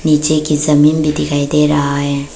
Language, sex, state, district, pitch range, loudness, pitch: Hindi, female, Arunachal Pradesh, Papum Pare, 145-150 Hz, -13 LUFS, 150 Hz